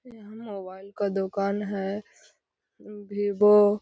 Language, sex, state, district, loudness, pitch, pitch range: Magahi, female, Bihar, Gaya, -26 LUFS, 205 Hz, 195-210 Hz